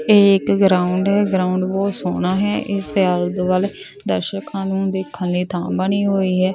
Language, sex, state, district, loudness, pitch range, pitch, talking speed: Punjabi, female, Punjab, Fazilka, -18 LUFS, 180-200 Hz, 190 Hz, 185 wpm